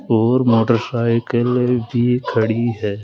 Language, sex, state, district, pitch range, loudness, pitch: Hindi, male, Rajasthan, Jaipur, 115-125 Hz, -17 LUFS, 120 Hz